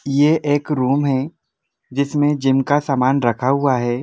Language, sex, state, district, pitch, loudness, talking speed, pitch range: Hindi, male, Jharkhand, Sahebganj, 140 Hz, -18 LUFS, 165 wpm, 130-145 Hz